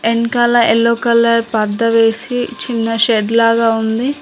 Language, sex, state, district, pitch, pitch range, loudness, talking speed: Telugu, female, Telangana, Mahabubabad, 230 Hz, 225-235 Hz, -14 LUFS, 130 wpm